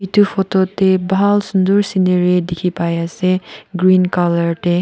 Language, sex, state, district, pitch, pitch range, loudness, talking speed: Nagamese, female, Nagaland, Kohima, 185 Hz, 175-195 Hz, -15 LUFS, 125 wpm